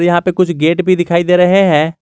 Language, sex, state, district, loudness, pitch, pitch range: Hindi, male, Jharkhand, Garhwa, -12 LUFS, 175 Hz, 170-180 Hz